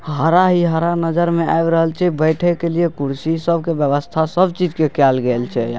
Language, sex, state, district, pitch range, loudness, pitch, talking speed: Maithili, male, Bihar, Darbhanga, 145-170 Hz, -17 LUFS, 165 Hz, 215 wpm